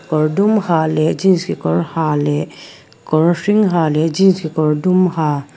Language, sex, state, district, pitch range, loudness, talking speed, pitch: Mizo, female, Mizoram, Aizawl, 155-185 Hz, -15 LUFS, 170 wpm, 160 Hz